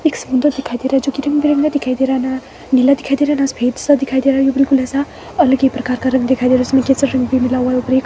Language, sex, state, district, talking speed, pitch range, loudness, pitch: Hindi, female, Himachal Pradesh, Shimla, 355 wpm, 255-275 Hz, -15 LUFS, 265 Hz